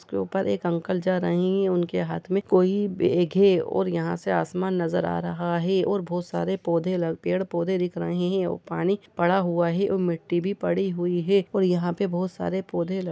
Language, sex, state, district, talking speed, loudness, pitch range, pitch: Hindi, male, Bihar, Lakhisarai, 230 wpm, -25 LUFS, 170-190 Hz, 180 Hz